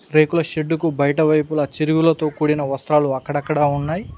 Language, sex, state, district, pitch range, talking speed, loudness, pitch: Telugu, male, Telangana, Mahabubabad, 145-155 Hz, 115 wpm, -19 LUFS, 155 Hz